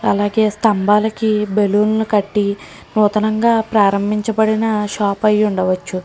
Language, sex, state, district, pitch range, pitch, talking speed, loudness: Telugu, female, Andhra Pradesh, Srikakulam, 205-220 Hz, 210 Hz, 90 wpm, -16 LUFS